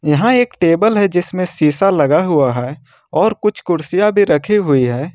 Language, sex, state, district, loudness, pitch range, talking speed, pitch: Hindi, male, Jharkhand, Ranchi, -14 LUFS, 150-210 Hz, 185 wpm, 180 Hz